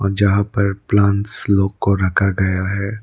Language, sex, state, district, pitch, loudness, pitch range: Hindi, male, Arunachal Pradesh, Lower Dibang Valley, 100 Hz, -17 LUFS, 95-100 Hz